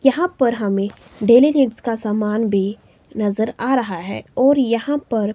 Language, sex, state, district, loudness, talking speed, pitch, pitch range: Hindi, female, Himachal Pradesh, Shimla, -18 LUFS, 170 wpm, 230 Hz, 210-265 Hz